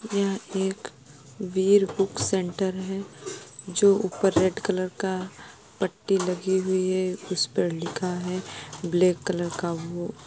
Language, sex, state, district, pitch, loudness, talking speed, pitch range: Hindi, female, Uttar Pradesh, Muzaffarnagar, 185 Hz, -26 LUFS, 140 wpm, 180-195 Hz